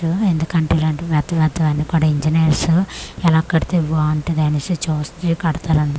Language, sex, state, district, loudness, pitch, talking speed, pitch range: Telugu, female, Andhra Pradesh, Manyam, -18 LUFS, 160 Hz, 140 wpm, 155-165 Hz